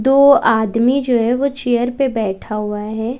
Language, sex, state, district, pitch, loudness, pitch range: Hindi, female, Bihar, West Champaran, 240 Hz, -16 LUFS, 220-265 Hz